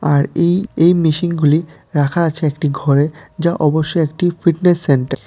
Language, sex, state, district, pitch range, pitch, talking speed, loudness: Bengali, male, Tripura, West Tripura, 145-170 Hz, 160 Hz, 150 wpm, -16 LUFS